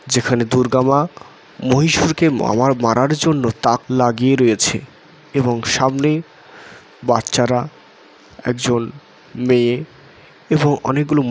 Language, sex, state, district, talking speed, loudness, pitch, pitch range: Bengali, male, West Bengal, Jalpaiguri, 85 wpm, -17 LUFS, 130 Hz, 120-145 Hz